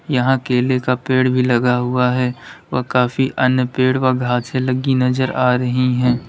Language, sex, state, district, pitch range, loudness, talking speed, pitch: Hindi, male, Uttar Pradesh, Lalitpur, 125-130 Hz, -17 LUFS, 180 wpm, 125 Hz